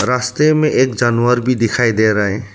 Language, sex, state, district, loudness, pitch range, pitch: Hindi, male, Arunachal Pradesh, Lower Dibang Valley, -14 LUFS, 110-130 Hz, 120 Hz